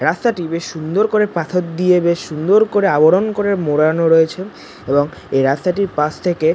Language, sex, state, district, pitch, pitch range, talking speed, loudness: Bengali, male, West Bengal, North 24 Parganas, 170 Hz, 155-195 Hz, 165 wpm, -16 LUFS